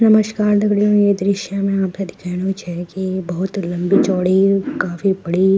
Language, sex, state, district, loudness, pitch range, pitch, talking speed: Garhwali, female, Uttarakhand, Tehri Garhwal, -18 LUFS, 185-200 Hz, 195 Hz, 160 wpm